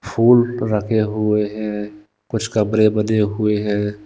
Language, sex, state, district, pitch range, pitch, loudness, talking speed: Hindi, male, Himachal Pradesh, Shimla, 105-110 Hz, 105 Hz, -18 LUFS, 135 wpm